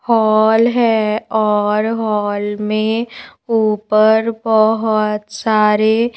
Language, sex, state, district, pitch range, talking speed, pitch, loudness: Hindi, female, Madhya Pradesh, Bhopal, 210-225 Hz, 80 wpm, 220 Hz, -15 LUFS